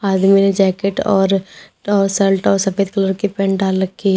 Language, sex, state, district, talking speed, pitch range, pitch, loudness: Hindi, female, Uttar Pradesh, Lalitpur, 175 wpm, 195-200 Hz, 195 Hz, -16 LUFS